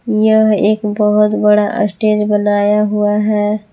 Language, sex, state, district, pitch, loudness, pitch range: Hindi, female, Jharkhand, Palamu, 210 Hz, -13 LUFS, 210-215 Hz